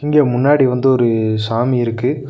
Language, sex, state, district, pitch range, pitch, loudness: Tamil, male, Tamil Nadu, Nilgiris, 115-135 Hz, 125 Hz, -15 LUFS